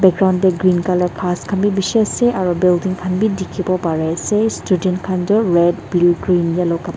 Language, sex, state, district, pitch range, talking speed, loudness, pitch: Nagamese, female, Nagaland, Dimapur, 175-195 Hz, 215 wpm, -16 LUFS, 185 Hz